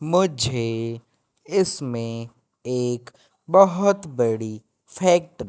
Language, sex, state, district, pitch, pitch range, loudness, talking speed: Hindi, male, Madhya Pradesh, Katni, 125 Hz, 115-175 Hz, -22 LUFS, 75 wpm